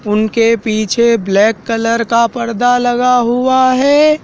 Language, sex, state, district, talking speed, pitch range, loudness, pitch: Hindi, male, Madhya Pradesh, Dhar, 125 wpm, 225-245 Hz, -12 LUFS, 235 Hz